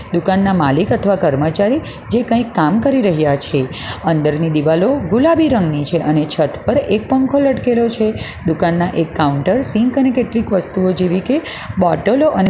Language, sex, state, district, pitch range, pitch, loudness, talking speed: Gujarati, female, Gujarat, Valsad, 160-240 Hz, 190 Hz, -15 LUFS, 165 wpm